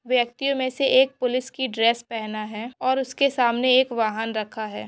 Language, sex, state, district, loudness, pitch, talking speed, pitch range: Hindi, female, Maharashtra, Pune, -23 LUFS, 250 Hz, 195 wpm, 225-260 Hz